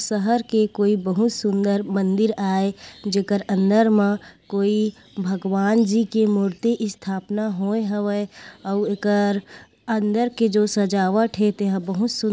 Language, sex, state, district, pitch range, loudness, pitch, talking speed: Chhattisgarhi, female, Chhattisgarh, Korba, 200-220 Hz, -21 LUFS, 205 Hz, 145 wpm